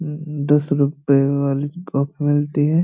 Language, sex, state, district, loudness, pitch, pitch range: Hindi, male, Uttar Pradesh, Hamirpur, -19 LUFS, 145 Hz, 140-150 Hz